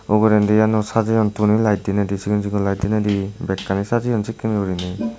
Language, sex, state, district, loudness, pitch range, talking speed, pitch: Chakma, male, Tripura, Dhalai, -19 LUFS, 100-110 Hz, 175 wpm, 105 Hz